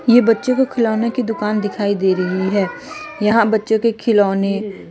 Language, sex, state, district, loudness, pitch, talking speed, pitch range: Hindi, female, Chhattisgarh, Raipur, -17 LUFS, 215 Hz, 170 wpm, 200-235 Hz